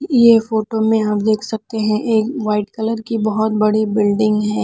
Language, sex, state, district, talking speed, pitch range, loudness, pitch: Hindi, female, Punjab, Pathankot, 195 wpm, 215-225 Hz, -17 LUFS, 220 Hz